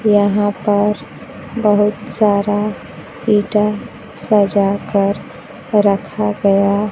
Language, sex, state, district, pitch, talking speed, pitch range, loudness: Hindi, female, Bihar, Kaimur, 205 Hz, 80 wpm, 200-210 Hz, -16 LUFS